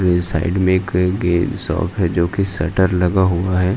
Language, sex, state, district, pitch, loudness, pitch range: Hindi, male, Maharashtra, Aurangabad, 90 Hz, -18 LUFS, 85-95 Hz